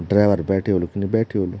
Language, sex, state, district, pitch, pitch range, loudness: Garhwali, male, Uttarakhand, Tehri Garhwal, 100 Hz, 95-105 Hz, -20 LUFS